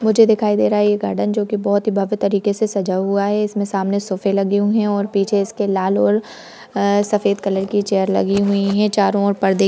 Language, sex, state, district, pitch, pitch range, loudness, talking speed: Hindi, female, Uttar Pradesh, Budaun, 200 Hz, 195-205 Hz, -18 LUFS, 235 wpm